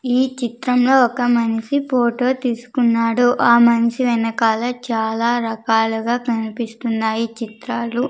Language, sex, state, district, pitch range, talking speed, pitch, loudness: Telugu, female, Andhra Pradesh, Sri Satya Sai, 230-245 Hz, 95 wpm, 235 Hz, -18 LUFS